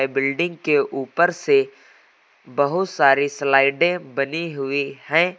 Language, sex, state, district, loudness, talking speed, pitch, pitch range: Hindi, male, Uttar Pradesh, Lucknow, -20 LUFS, 110 wpm, 145 Hz, 135-175 Hz